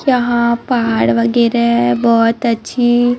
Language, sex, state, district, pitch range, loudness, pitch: Hindi, female, Chhattisgarh, Raipur, 230-240 Hz, -14 LUFS, 235 Hz